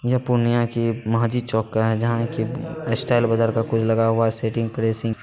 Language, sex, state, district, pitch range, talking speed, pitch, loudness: Hindi, male, Bihar, Purnia, 115-120 Hz, 230 wpm, 115 Hz, -21 LUFS